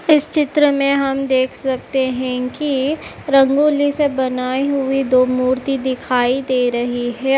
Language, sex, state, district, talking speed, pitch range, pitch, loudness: Hindi, female, Uttar Pradesh, Etah, 155 wpm, 255-280 Hz, 270 Hz, -17 LUFS